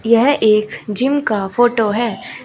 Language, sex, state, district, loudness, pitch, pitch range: Hindi, female, Uttar Pradesh, Shamli, -16 LUFS, 230 Hz, 215-245 Hz